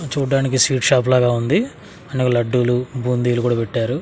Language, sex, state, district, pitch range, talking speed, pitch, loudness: Telugu, male, Andhra Pradesh, Sri Satya Sai, 120-135 Hz, 150 wpm, 125 Hz, -18 LUFS